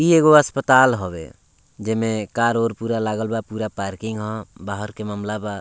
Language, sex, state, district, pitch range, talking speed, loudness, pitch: Bhojpuri, male, Bihar, Muzaffarpur, 105-115 Hz, 190 wpm, -20 LUFS, 110 Hz